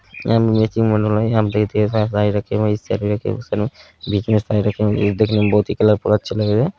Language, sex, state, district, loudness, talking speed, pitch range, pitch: Bhojpuri, male, Bihar, Saran, -18 LUFS, 140 wpm, 105-110 Hz, 105 Hz